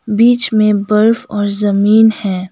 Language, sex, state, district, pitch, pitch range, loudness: Hindi, female, Sikkim, Gangtok, 210 Hz, 205-220 Hz, -12 LUFS